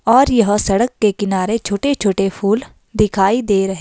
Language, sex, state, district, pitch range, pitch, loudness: Hindi, female, Himachal Pradesh, Shimla, 195-230 Hz, 205 Hz, -16 LUFS